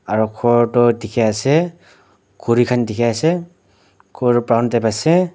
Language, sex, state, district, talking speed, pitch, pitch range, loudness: Nagamese, male, Nagaland, Dimapur, 145 wpm, 120 Hz, 110-140 Hz, -17 LUFS